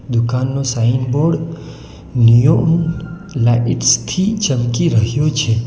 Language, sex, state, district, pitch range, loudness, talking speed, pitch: Gujarati, male, Gujarat, Valsad, 120-160 Hz, -15 LUFS, 95 wpm, 135 Hz